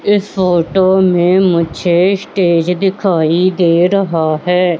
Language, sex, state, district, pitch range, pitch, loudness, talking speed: Hindi, female, Madhya Pradesh, Katni, 170-190 Hz, 180 Hz, -12 LUFS, 110 wpm